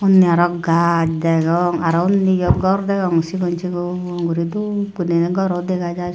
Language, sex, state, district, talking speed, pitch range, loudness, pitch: Chakma, female, Tripura, Dhalai, 145 wpm, 170-185 Hz, -18 LUFS, 175 Hz